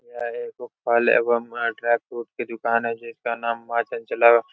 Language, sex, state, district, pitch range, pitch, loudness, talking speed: Hindi, male, Uttar Pradesh, Etah, 115-120 Hz, 120 Hz, -23 LUFS, 185 wpm